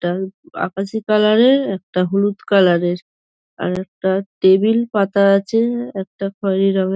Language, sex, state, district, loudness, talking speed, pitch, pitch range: Bengali, female, West Bengal, Dakshin Dinajpur, -17 LUFS, 140 wpm, 195 Hz, 190-215 Hz